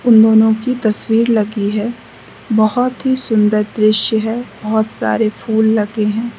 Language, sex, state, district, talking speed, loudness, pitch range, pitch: Hindi, female, Mizoram, Aizawl, 150 wpm, -14 LUFS, 215-230 Hz, 220 Hz